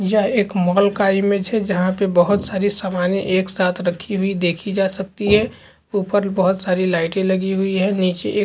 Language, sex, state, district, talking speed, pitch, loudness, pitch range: Hindi, male, Chhattisgarh, Bastar, 200 wpm, 195 Hz, -18 LUFS, 185-200 Hz